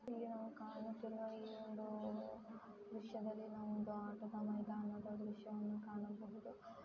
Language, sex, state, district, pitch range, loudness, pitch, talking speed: Kannada, female, Karnataka, Dharwad, 210-220 Hz, -49 LUFS, 215 Hz, 115 wpm